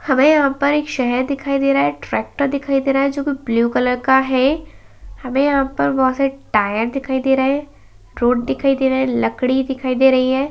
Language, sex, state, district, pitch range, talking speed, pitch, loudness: Kumaoni, male, Uttarakhand, Uttarkashi, 255-275 Hz, 230 wpm, 265 Hz, -17 LUFS